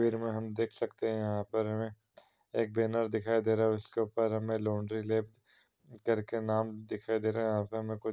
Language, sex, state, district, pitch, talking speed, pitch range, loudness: Hindi, male, Uttar Pradesh, Muzaffarnagar, 110 Hz, 215 wpm, 110-115 Hz, -33 LUFS